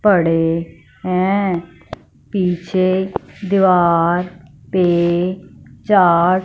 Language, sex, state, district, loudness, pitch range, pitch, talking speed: Hindi, female, Punjab, Fazilka, -16 LUFS, 170-190 Hz, 180 Hz, 55 wpm